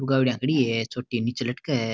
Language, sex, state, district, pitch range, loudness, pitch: Rajasthani, male, Rajasthan, Nagaur, 120-135 Hz, -25 LUFS, 125 Hz